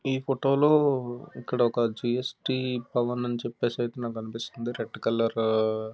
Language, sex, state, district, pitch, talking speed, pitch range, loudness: Telugu, male, Andhra Pradesh, Visakhapatnam, 120 Hz, 130 wpm, 115-130 Hz, -27 LUFS